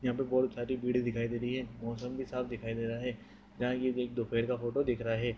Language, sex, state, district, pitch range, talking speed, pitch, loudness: Hindi, male, Maharashtra, Sindhudurg, 115-125 Hz, 255 wpm, 125 Hz, -34 LUFS